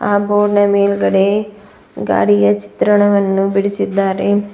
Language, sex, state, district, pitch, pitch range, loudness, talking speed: Kannada, female, Karnataka, Bidar, 200 Hz, 190-205 Hz, -14 LUFS, 90 wpm